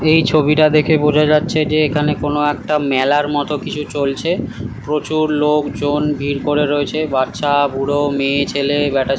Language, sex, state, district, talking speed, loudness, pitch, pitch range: Bengali, male, West Bengal, Kolkata, 170 wpm, -16 LUFS, 145 Hz, 140-150 Hz